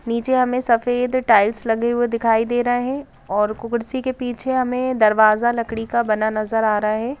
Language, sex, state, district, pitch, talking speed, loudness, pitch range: Hindi, female, Madhya Pradesh, Bhopal, 235 Hz, 200 wpm, -19 LUFS, 220-250 Hz